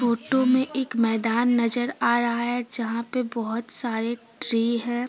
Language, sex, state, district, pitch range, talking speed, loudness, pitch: Hindi, female, Jharkhand, Deoghar, 230-245 Hz, 175 wpm, -21 LUFS, 235 Hz